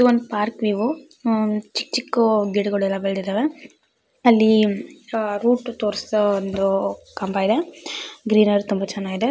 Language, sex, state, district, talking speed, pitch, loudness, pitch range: Kannada, female, Karnataka, Raichur, 110 wpm, 215 Hz, -21 LUFS, 200-240 Hz